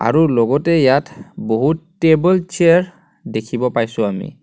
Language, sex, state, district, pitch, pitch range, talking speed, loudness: Assamese, male, Assam, Kamrup Metropolitan, 155 Hz, 120-170 Hz, 120 wpm, -16 LUFS